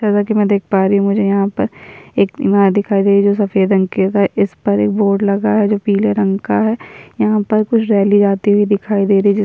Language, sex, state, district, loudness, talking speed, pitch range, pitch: Hindi, female, Bihar, Kishanganj, -14 LUFS, 280 wpm, 200-210 Hz, 200 Hz